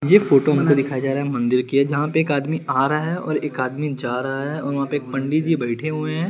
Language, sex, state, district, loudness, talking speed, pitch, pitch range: Hindi, male, Chandigarh, Chandigarh, -21 LUFS, 295 wpm, 140 Hz, 135-155 Hz